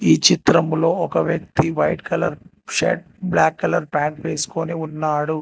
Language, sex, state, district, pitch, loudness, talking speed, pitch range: Telugu, male, Telangana, Hyderabad, 155 Hz, -20 LUFS, 135 wpm, 150-160 Hz